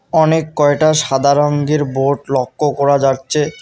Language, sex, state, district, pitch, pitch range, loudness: Bengali, male, West Bengal, Alipurduar, 145 Hz, 140-155 Hz, -14 LUFS